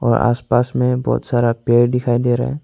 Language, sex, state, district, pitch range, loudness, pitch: Hindi, male, Arunachal Pradesh, Longding, 120-125 Hz, -17 LUFS, 120 Hz